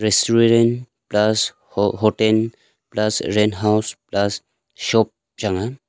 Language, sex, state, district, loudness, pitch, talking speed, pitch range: Wancho, male, Arunachal Pradesh, Longding, -19 LUFS, 110 Hz, 110 wpm, 105-115 Hz